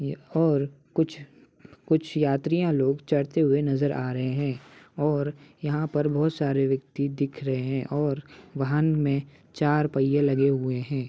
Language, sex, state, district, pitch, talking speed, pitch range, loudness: Hindi, male, Uttar Pradesh, Ghazipur, 145 Hz, 155 wpm, 135-150 Hz, -26 LUFS